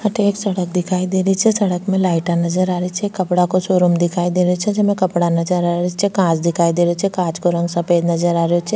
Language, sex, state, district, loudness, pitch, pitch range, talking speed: Rajasthani, female, Rajasthan, Nagaur, -17 LUFS, 180 Hz, 175-190 Hz, 280 wpm